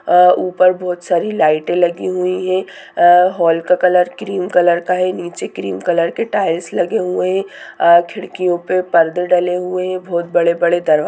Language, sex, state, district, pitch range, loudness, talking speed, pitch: Hindi, female, Bihar, Bhagalpur, 170-185 Hz, -15 LUFS, 180 wpm, 180 Hz